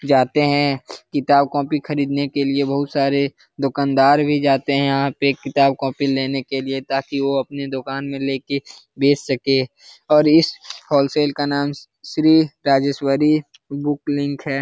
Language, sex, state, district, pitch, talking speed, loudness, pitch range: Hindi, male, Bihar, Lakhisarai, 140 Hz, 160 wpm, -19 LUFS, 135-145 Hz